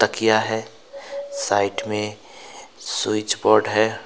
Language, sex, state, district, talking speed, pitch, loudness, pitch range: Hindi, male, West Bengal, Alipurduar, 105 wpm, 110 Hz, -21 LUFS, 105-115 Hz